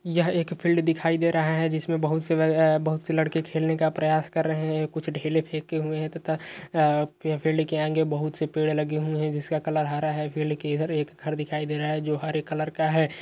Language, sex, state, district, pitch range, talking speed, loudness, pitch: Hindi, male, Uttar Pradesh, Etah, 155-160 Hz, 240 wpm, -26 LUFS, 155 Hz